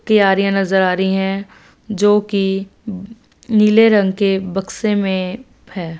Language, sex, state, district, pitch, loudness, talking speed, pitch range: Hindi, female, Punjab, Fazilka, 195 Hz, -16 LUFS, 120 wpm, 190-210 Hz